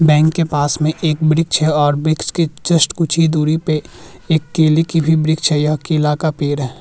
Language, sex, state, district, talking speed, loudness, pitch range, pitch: Hindi, male, Bihar, Vaishali, 230 wpm, -15 LUFS, 150-160 Hz, 155 Hz